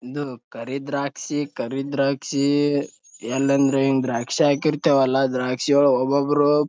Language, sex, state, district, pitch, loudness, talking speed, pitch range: Kannada, male, Karnataka, Bijapur, 140 Hz, -21 LUFS, 105 wpm, 135-145 Hz